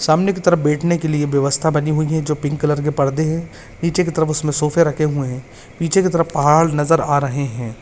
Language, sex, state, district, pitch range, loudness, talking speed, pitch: Hindi, male, Maharashtra, Pune, 145-165 Hz, -17 LUFS, 255 wpm, 155 Hz